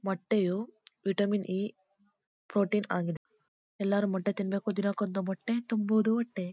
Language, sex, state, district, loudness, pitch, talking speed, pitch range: Kannada, female, Karnataka, Mysore, -31 LUFS, 200 Hz, 110 wpm, 195-210 Hz